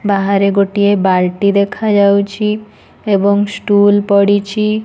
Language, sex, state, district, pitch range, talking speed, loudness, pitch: Odia, female, Odisha, Nuapada, 200-205 Hz, 85 wpm, -13 LUFS, 200 Hz